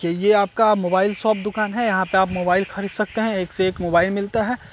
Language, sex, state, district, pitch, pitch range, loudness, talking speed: Hindi, male, Bihar, Saran, 200 Hz, 185-215 Hz, -20 LUFS, 240 wpm